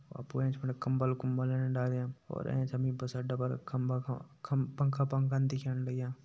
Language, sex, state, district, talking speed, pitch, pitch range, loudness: Garhwali, male, Uttarakhand, Tehri Garhwal, 190 wpm, 130 Hz, 125-135 Hz, -34 LUFS